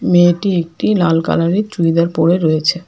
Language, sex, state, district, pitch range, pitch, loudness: Bengali, female, West Bengal, Alipurduar, 165-175 Hz, 175 Hz, -14 LUFS